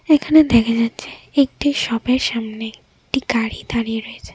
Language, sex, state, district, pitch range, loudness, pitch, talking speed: Bengali, female, Tripura, West Tripura, 225-275 Hz, -18 LUFS, 235 Hz, 140 wpm